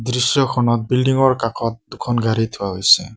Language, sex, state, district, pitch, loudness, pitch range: Assamese, male, Assam, Sonitpur, 120 Hz, -18 LUFS, 110-125 Hz